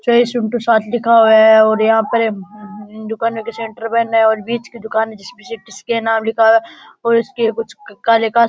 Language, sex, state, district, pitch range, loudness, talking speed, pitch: Rajasthani, male, Rajasthan, Nagaur, 220-230 Hz, -15 LUFS, 185 wpm, 225 Hz